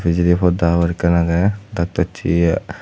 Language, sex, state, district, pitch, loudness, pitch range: Chakma, male, Tripura, West Tripura, 85 Hz, -17 LUFS, 85-90 Hz